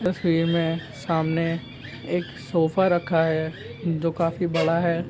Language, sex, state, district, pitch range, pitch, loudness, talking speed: Hindi, male, Maharashtra, Nagpur, 160-170 Hz, 165 Hz, -24 LUFS, 130 wpm